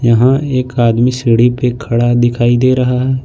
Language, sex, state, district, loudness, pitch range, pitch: Hindi, male, Jharkhand, Ranchi, -12 LUFS, 120-130 Hz, 125 Hz